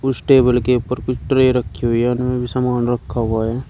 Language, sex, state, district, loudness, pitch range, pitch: Hindi, male, Uttar Pradesh, Shamli, -17 LUFS, 120-125 Hz, 125 Hz